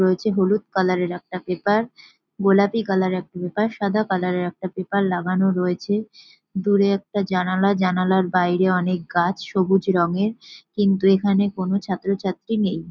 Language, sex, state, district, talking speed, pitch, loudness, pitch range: Bengali, female, West Bengal, North 24 Parganas, 165 wpm, 190 Hz, -21 LUFS, 180-200 Hz